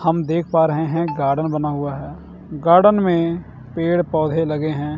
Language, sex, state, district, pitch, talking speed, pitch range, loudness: Hindi, male, Chandigarh, Chandigarh, 160 Hz, 180 wpm, 150-170 Hz, -18 LUFS